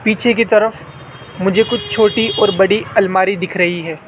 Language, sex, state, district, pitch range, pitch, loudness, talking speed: Hindi, male, Rajasthan, Jaipur, 175-215 Hz, 200 Hz, -14 LUFS, 175 wpm